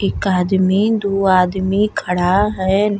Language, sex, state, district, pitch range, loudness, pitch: Bhojpuri, female, Uttar Pradesh, Deoria, 185-205 Hz, -16 LUFS, 190 Hz